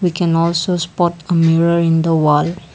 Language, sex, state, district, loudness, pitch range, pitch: English, female, Assam, Kamrup Metropolitan, -15 LUFS, 165-175 Hz, 170 Hz